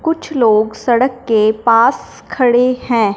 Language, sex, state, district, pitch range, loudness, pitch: Hindi, female, Punjab, Fazilka, 220-255 Hz, -13 LUFS, 240 Hz